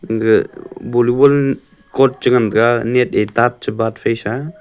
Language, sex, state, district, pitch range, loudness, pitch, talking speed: Wancho, male, Arunachal Pradesh, Longding, 115-130 Hz, -15 LUFS, 120 Hz, 90 wpm